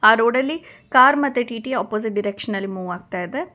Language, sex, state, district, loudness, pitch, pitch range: Kannada, female, Karnataka, Bangalore, -20 LUFS, 230 Hz, 200-260 Hz